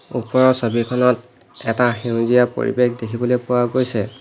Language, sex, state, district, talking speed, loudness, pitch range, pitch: Assamese, male, Assam, Hailakandi, 115 wpm, -18 LUFS, 115-125 Hz, 125 Hz